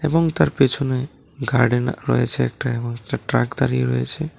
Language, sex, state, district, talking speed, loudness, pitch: Bengali, male, Tripura, West Tripura, 150 wpm, -20 LUFS, 125 Hz